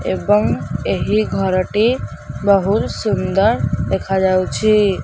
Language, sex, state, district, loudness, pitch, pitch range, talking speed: Odia, female, Odisha, Khordha, -17 LUFS, 200 Hz, 190-210 Hz, 70 wpm